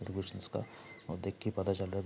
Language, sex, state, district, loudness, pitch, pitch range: Hindi, male, Bihar, Saharsa, -39 LUFS, 95 Hz, 95-105 Hz